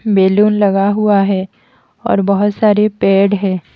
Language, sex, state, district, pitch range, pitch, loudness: Hindi, female, Haryana, Jhajjar, 195-210 Hz, 200 Hz, -13 LUFS